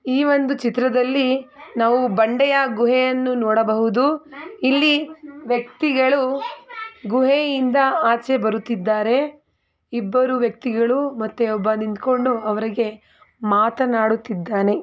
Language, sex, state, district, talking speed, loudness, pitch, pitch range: Kannada, female, Karnataka, Mysore, 75 wpm, -19 LUFS, 255 Hz, 225-275 Hz